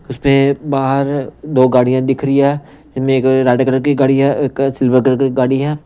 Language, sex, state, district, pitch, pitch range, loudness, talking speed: Hindi, male, Punjab, Pathankot, 135 Hz, 130-140 Hz, -14 LUFS, 215 wpm